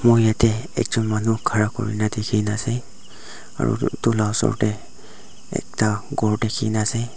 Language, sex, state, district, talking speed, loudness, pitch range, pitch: Nagamese, male, Nagaland, Dimapur, 140 wpm, -22 LUFS, 105-115 Hz, 110 Hz